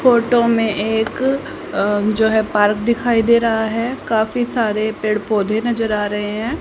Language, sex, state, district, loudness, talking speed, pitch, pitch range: Hindi, female, Haryana, Rohtak, -17 LUFS, 175 wpm, 220 Hz, 215-235 Hz